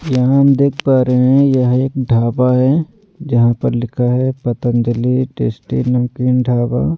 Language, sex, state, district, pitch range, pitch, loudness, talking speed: Hindi, male, Delhi, New Delhi, 120-135 Hz, 125 Hz, -14 LUFS, 165 wpm